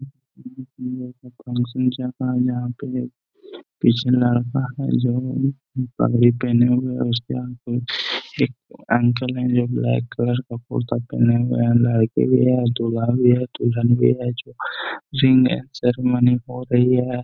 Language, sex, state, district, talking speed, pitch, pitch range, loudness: Hindi, male, Bihar, Gaya, 155 wpm, 125 Hz, 120-125 Hz, -20 LUFS